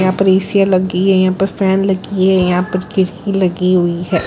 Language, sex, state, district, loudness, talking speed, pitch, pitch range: Hindi, female, Gujarat, Valsad, -14 LUFS, 195 wpm, 185 Hz, 185-195 Hz